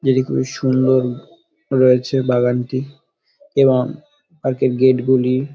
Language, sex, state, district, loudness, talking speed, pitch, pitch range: Bengali, male, West Bengal, Dakshin Dinajpur, -17 LUFS, 110 wpm, 130 Hz, 130-140 Hz